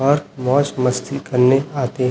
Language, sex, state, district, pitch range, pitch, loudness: Hindi, male, Chhattisgarh, Raipur, 125-140 Hz, 130 Hz, -18 LUFS